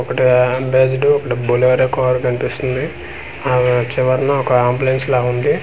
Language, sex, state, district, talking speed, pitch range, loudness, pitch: Telugu, male, Andhra Pradesh, Manyam, 130 wpm, 125-130 Hz, -16 LUFS, 130 Hz